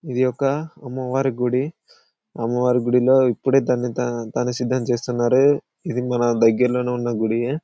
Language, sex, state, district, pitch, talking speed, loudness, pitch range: Telugu, male, Telangana, Karimnagar, 125 Hz, 135 wpm, -20 LUFS, 120-130 Hz